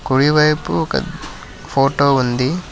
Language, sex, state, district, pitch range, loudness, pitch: Telugu, male, Telangana, Hyderabad, 135-150 Hz, -16 LUFS, 140 Hz